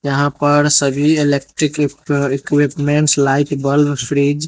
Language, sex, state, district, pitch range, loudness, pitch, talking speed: Hindi, male, Bihar, Katihar, 140-145 Hz, -15 LUFS, 145 Hz, 145 wpm